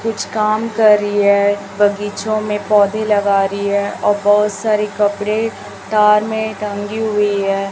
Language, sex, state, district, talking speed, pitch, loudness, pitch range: Hindi, male, Chhattisgarh, Raipur, 155 wpm, 205 Hz, -16 LUFS, 200-215 Hz